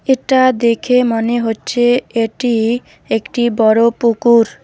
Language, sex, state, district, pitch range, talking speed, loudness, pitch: Bengali, female, West Bengal, Alipurduar, 225-245 Hz, 105 wpm, -14 LUFS, 235 Hz